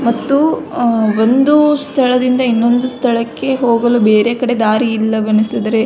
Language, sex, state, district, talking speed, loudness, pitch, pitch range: Kannada, female, Karnataka, Belgaum, 115 wpm, -13 LUFS, 240 Hz, 225-255 Hz